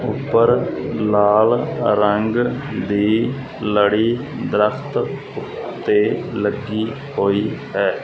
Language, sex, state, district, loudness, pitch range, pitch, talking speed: Punjabi, male, Punjab, Fazilka, -19 LUFS, 105-120 Hz, 110 Hz, 75 wpm